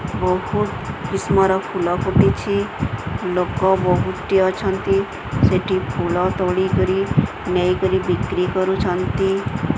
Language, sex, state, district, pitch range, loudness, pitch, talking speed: Odia, female, Odisha, Sambalpur, 175-190 Hz, -19 LUFS, 185 Hz, 90 wpm